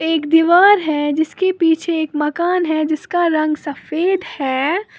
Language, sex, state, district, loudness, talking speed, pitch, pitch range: Hindi, female, Uttar Pradesh, Lalitpur, -16 LUFS, 145 wpm, 320 Hz, 305-350 Hz